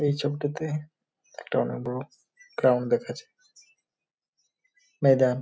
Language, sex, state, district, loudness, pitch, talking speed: Bengali, male, West Bengal, Malda, -27 LUFS, 145 Hz, 100 wpm